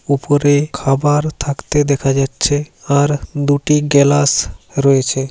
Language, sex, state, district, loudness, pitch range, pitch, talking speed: Bengali, male, West Bengal, Paschim Medinipur, -15 LUFS, 140-145 Hz, 140 Hz, 100 wpm